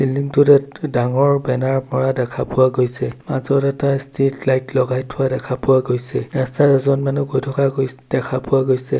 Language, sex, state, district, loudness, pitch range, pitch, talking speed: Assamese, male, Assam, Sonitpur, -18 LUFS, 130-140 Hz, 135 Hz, 160 wpm